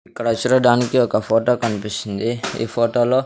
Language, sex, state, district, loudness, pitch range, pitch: Telugu, male, Andhra Pradesh, Sri Satya Sai, -19 LUFS, 115-125 Hz, 120 Hz